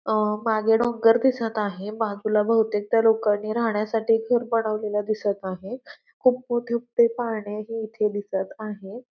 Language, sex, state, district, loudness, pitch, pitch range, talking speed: Marathi, female, Maharashtra, Pune, -24 LUFS, 220 Hz, 210-235 Hz, 140 wpm